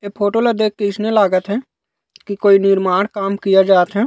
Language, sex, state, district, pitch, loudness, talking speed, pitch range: Chhattisgarhi, male, Chhattisgarh, Raigarh, 200 Hz, -15 LUFS, 220 wpm, 195-215 Hz